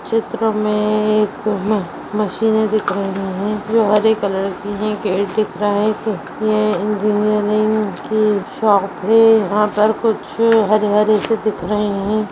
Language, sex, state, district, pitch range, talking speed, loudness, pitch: Hindi, female, Chhattisgarh, Rajnandgaon, 205-215 Hz, 130 wpm, -17 LUFS, 210 Hz